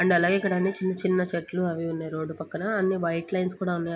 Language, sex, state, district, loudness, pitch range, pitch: Telugu, female, Andhra Pradesh, Guntur, -27 LUFS, 170-190 Hz, 180 Hz